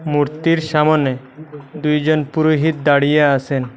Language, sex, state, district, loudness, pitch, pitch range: Bengali, male, Assam, Hailakandi, -16 LUFS, 150 Hz, 140-155 Hz